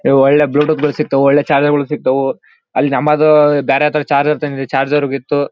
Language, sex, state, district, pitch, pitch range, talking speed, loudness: Kannada, male, Karnataka, Bellary, 145 Hz, 140-150 Hz, 185 wpm, -13 LUFS